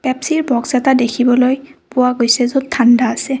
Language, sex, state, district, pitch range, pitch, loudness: Assamese, female, Assam, Kamrup Metropolitan, 245-265 Hz, 255 Hz, -14 LUFS